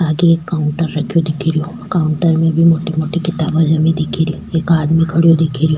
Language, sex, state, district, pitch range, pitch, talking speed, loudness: Rajasthani, female, Rajasthan, Churu, 160-165 Hz, 160 Hz, 175 wpm, -15 LUFS